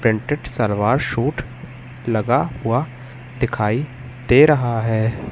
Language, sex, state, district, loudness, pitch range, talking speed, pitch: Hindi, male, Madhya Pradesh, Katni, -19 LUFS, 115-130 Hz, 100 wpm, 125 Hz